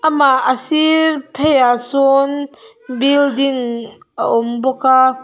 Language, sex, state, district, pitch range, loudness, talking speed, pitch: Mizo, female, Mizoram, Aizawl, 260-285 Hz, -14 LUFS, 115 wpm, 275 Hz